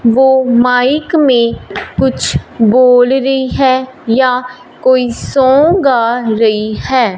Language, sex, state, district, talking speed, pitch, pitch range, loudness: Hindi, female, Punjab, Fazilka, 110 wpm, 255 Hz, 240-265 Hz, -11 LUFS